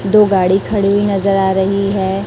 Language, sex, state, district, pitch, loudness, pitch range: Hindi, female, Chhattisgarh, Raipur, 195 Hz, -14 LUFS, 190-200 Hz